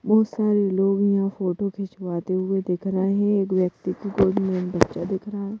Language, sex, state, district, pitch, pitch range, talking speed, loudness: Hindi, female, Madhya Pradesh, Bhopal, 195 Hz, 185-200 Hz, 205 wpm, -23 LUFS